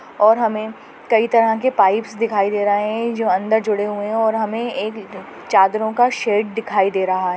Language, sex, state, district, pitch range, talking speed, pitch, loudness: Hindi, female, Chhattisgarh, Raigarh, 205-225 Hz, 205 wpm, 215 Hz, -18 LUFS